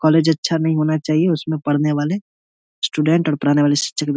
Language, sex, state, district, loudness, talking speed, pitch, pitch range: Hindi, male, Bihar, Saharsa, -18 LUFS, 215 wpm, 155 Hz, 145-160 Hz